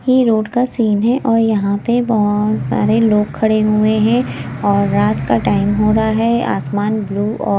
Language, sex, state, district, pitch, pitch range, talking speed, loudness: Hindi, female, Himachal Pradesh, Shimla, 215 Hz, 205-225 Hz, 190 wpm, -15 LUFS